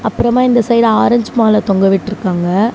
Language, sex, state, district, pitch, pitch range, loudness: Tamil, female, Tamil Nadu, Namakkal, 220 Hz, 195-235 Hz, -12 LUFS